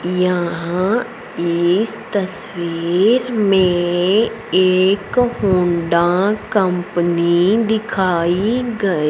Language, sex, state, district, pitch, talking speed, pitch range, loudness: Hindi, female, Punjab, Fazilka, 185 Hz, 60 wpm, 175-215 Hz, -17 LUFS